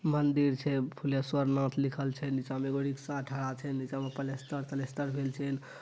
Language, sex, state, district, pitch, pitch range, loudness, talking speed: Maithili, male, Bihar, Madhepura, 135 Hz, 135-140 Hz, -33 LUFS, 175 wpm